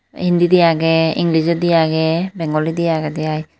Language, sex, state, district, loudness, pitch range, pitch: Chakma, female, Tripura, Unakoti, -16 LUFS, 160-170 Hz, 165 Hz